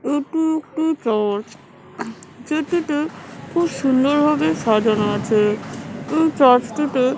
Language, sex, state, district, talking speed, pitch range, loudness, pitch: Bengali, female, West Bengal, Kolkata, 90 wpm, 220-310 Hz, -19 LUFS, 275 Hz